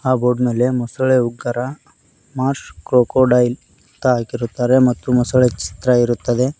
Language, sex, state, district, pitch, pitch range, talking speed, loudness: Kannada, male, Karnataka, Koppal, 125 Hz, 120-130 Hz, 120 wpm, -17 LUFS